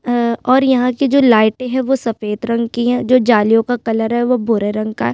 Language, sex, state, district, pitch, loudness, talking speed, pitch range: Hindi, female, Chhattisgarh, Sukma, 235 Hz, -15 LUFS, 255 wpm, 225-250 Hz